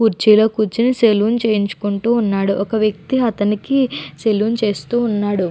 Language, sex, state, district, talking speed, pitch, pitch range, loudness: Telugu, female, Andhra Pradesh, Chittoor, 120 wpm, 215 Hz, 205-230 Hz, -17 LUFS